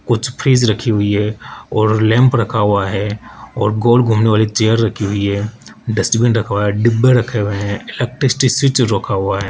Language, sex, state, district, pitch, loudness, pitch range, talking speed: Hindi, male, Rajasthan, Jaipur, 110 Hz, -15 LUFS, 105-120 Hz, 190 wpm